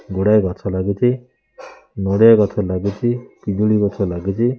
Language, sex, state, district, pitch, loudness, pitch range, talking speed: Odia, male, Odisha, Khordha, 100 Hz, -18 LUFS, 100-120 Hz, 115 wpm